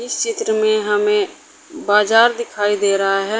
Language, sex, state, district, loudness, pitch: Hindi, female, Uttar Pradesh, Saharanpur, -16 LUFS, 235 Hz